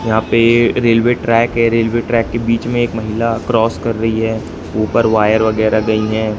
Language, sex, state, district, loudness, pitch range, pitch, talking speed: Hindi, male, Madhya Pradesh, Katni, -14 LUFS, 110-115 Hz, 115 Hz, 195 wpm